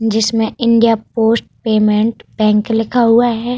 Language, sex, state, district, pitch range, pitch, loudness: Hindi, female, Uttar Pradesh, Budaun, 220-235 Hz, 225 Hz, -14 LUFS